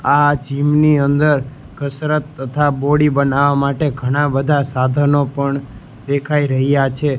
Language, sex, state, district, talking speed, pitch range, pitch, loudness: Gujarati, male, Gujarat, Gandhinagar, 135 wpm, 135-145 Hz, 140 Hz, -16 LUFS